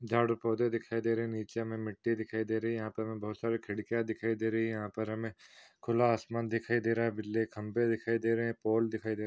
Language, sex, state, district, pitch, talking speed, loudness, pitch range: Hindi, male, Uttar Pradesh, Hamirpur, 115 Hz, 285 wpm, -34 LUFS, 110-115 Hz